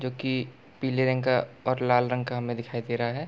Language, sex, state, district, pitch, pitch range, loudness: Hindi, male, Bihar, East Champaran, 125 Hz, 120-130 Hz, -27 LUFS